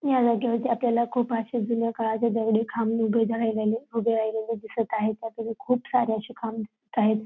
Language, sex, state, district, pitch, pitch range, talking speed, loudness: Marathi, female, Maharashtra, Dhule, 230 Hz, 220-235 Hz, 175 wpm, -26 LUFS